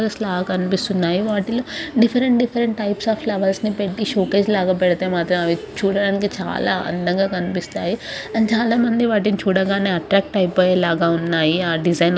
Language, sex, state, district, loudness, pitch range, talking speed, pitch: Telugu, female, Andhra Pradesh, Srikakulam, -19 LUFS, 180-215 Hz, 150 wpm, 195 Hz